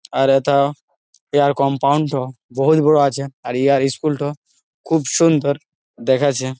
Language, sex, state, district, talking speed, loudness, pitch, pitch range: Bengali, male, West Bengal, Jalpaiguri, 135 wpm, -17 LUFS, 140 Hz, 135-145 Hz